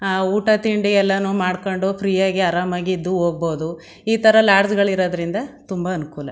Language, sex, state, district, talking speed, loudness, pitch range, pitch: Kannada, female, Karnataka, Mysore, 160 wpm, -19 LUFS, 180-200 Hz, 190 Hz